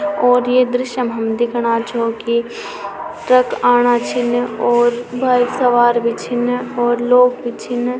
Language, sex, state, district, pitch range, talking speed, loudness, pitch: Garhwali, female, Uttarakhand, Tehri Garhwal, 240-250 Hz, 150 wpm, -16 LUFS, 245 Hz